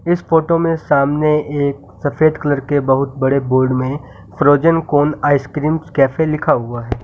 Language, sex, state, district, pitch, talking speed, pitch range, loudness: Hindi, male, Uttar Pradesh, Lucknow, 145 Hz, 160 wpm, 135-155 Hz, -16 LUFS